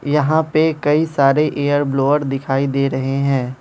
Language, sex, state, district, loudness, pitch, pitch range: Hindi, male, Manipur, Imphal West, -17 LUFS, 140 Hz, 135-150 Hz